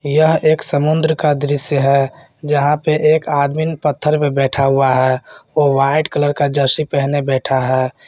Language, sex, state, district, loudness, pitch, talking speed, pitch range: Hindi, male, Jharkhand, Garhwa, -15 LUFS, 145 Hz, 170 wpm, 135-155 Hz